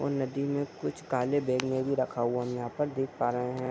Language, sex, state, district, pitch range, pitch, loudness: Hindi, male, Bihar, Bhagalpur, 125-140 Hz, 130 Hz, -31 LUFS